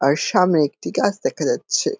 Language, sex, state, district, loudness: Bengali, male, West Bengal, Kolkata, -20 LUFS